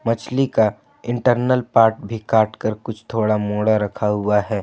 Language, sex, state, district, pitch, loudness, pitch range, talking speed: Hindi, male, Jharkhand, Ranchi, 110 Hz, -19 LUFS, 105-120 Hz, 170 wpm